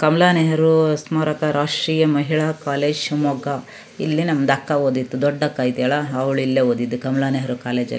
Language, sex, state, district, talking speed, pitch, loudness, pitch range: Kannada, female, Karnataka, Shimoga, 120 wpm, 145 Hz, -19 LUFS, 130-155 Hz